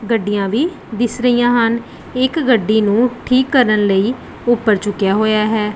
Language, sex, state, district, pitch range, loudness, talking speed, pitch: Punjabi, female, Punjab, Pathankot, 210-245 Hz, -15 LUFS, 155 wpm, 230 Hz